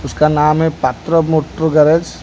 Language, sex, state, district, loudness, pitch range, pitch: Hindi, male, Odisha, Khordha, -14 LUFS, 150-160 Hz, 155 Hz